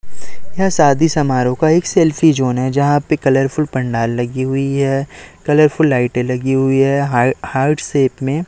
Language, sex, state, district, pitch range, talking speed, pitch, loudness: Hindi, male, Chhattisgarh, Raipur, 130-150 Hz, 170 wpm, 135 Hz, -15 LUFS